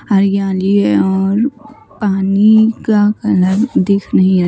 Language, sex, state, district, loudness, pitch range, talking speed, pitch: Hindi, female, Maharashtra, Mumbai Suburban, -13 LUFS, 190-215 Hz, 120 wpm, 200 Hz